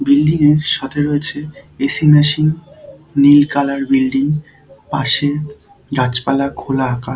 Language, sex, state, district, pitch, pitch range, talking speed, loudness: Bengali, male, West Bengal, Dakshin Dinajpur, 145 Hz, 135-150 Hz, 110 wpm, -15 LUFS